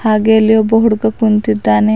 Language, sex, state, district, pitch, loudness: Kannada, female, Karnataka, Bidar, 220 Hz, -12 LUFS